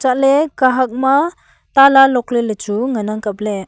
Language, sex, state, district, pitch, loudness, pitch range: Wancho, female, Arunachal Pradesh, Longding, 255 Hz, -14 LUFS, 215-270 Hz